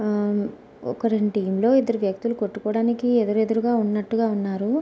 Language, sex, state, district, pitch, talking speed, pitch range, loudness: Telugu, female, Andhra Pradesh, Anantapur, 215 Hz, 135 wpm, 205-230 Hz, -23 LUFS